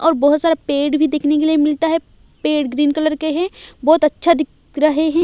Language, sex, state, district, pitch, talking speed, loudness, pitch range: Hindi, female, Odisha, Malkangiri, 305 Hz, 230 wpm, -17 LUFS, 295-320 Hz